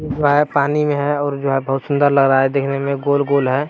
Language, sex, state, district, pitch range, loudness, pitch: Maithili, male, Bihar, Purnia, 135-145 Hz, -17 LUFS, 140 Hz